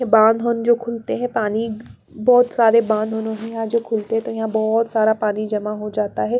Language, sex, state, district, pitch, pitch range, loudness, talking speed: Hindi, female, Bihar, Patna, 225 Hz, 220-230 Hz, -19 LUFS, 215 wpm